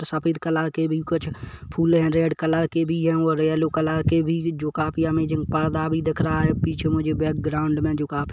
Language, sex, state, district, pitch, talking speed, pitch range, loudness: Hindi, male, Chhattisgarh, Kabirdham, 160 Hz, 185 wpm, 155-160 Hz, -23 LUFS